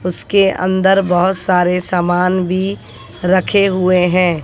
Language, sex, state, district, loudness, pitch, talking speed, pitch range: Hindi, female, Haryana, Jhajjar, -14 LUFS, 180 Hz, 120 wpm, 180-190 Hz